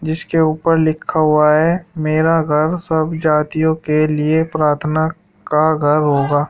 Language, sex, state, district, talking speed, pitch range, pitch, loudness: Hindi, male, Uttar Pradesh, Shamli, 140 wpm, 150-160 Hz, 155 Hz, -16 LUFS